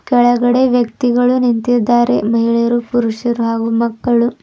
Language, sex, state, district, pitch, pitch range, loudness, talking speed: Kannada, female, Karnataka, Bidar, 240 Hz, 235-245 Hz, -14 LUFS, 95 wpm